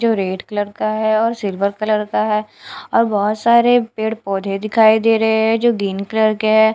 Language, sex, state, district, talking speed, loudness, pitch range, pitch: Hindi, female, Bihar, Katihar, 215 wpm, -16 LUFS, 205-225 Hz, 215 Hz